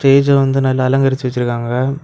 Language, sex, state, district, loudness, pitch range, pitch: Tamil, male, Tamil Nadu, Kanyakumari, -15 LUFS, 125-135 Hz, 135 Hz